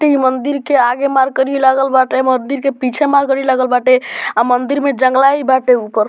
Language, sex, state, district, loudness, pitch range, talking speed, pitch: Bhojpuri, male, Bihar, Muzaffarpur, -13 LUFS, 255-275 Hz, 225 wpm, 265 Hz